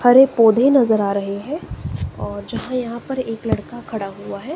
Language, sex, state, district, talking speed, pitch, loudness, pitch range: Hindi, female, Himachal Pradesh, Shimla, 195 wpm, 225 Hz, -19 LUFS, 200-255 Hz